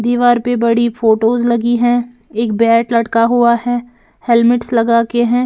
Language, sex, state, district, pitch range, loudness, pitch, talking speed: Hindi, female, Bihar, Patna, 230-240 Hz, -13 LUFS, 235 Hz, 165 wpm